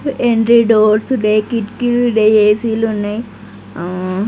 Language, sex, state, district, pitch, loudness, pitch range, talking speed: Telugu, female, Telangana, Karimnagar, 220 Hz, -14 LUFS, 210-235 Hz, 140 wpm